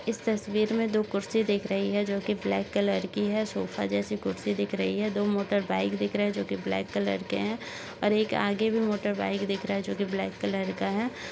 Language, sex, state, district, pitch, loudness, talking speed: Hindi, female, Uttar Pradesh, Budaun, 200 Hz, -29 LUFS, 220 wpm